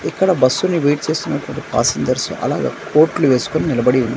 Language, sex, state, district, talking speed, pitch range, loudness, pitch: Telugu, male, Andhra Pradesh, Manyam, 145 wpm, 130-165 Hz, -17 LUFS, 145 Hz